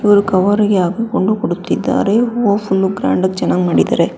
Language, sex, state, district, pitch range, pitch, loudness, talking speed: Kannada, female, Karnataka, Bangalore, 190-215 Hz, 200 Hz, -15 LUFS, 160 wpm